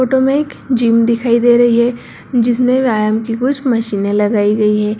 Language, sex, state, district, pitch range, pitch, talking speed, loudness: Hindi, male, Bihar, Darbhanga, 215-250 Hz, 235 Hz, 190 wpm, -14 LUFS